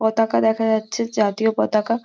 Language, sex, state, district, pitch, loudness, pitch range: Bengali, female, West Bengal, Jhargram, 220 Hz, -20 LUFS, 220-225 Hz